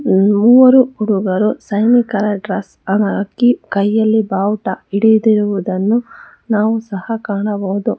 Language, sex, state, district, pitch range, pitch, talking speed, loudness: Kannada, female, Karnataka, Bangalore, 200-225 Hz, 210 Hz, 85 wpm, -14 LUFS